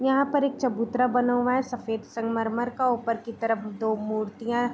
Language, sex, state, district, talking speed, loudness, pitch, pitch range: Hindi, female, Bihar, Vaishali, 190 wpm, -26 LUFS, 235 Hz, 225-250 Hz